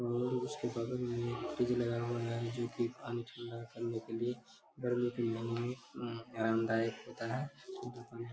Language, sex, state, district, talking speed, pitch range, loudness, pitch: Hindi, male, Bihar, Darbhanga, 160 wpm, 115-120 Hz, -38 LUFS, 120 Hz